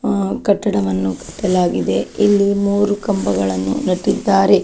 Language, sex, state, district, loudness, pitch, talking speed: Kannada, female, Karnataka, Dakshina Kannada, -17 LUFS, 185 Hz, 90 wpm